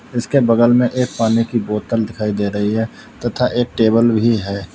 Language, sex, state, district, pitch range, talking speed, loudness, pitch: Hindi, male, Uttar Pradesh, Lalitpur, 110-120 Hz, 215 wpm, -17 LUFS, 115 Hz